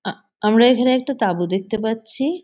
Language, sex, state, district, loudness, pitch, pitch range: Bengali, female, West Bengal, North 24 Parganas, -18 LUFS, 225 Hz, 210-255 Hz